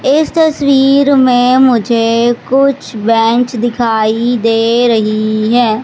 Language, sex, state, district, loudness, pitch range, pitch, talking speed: Hindi, male, Madhya Pradesh, Katni, -11 LUFS, 225-265 Hz, 240 Hz, 105 wpm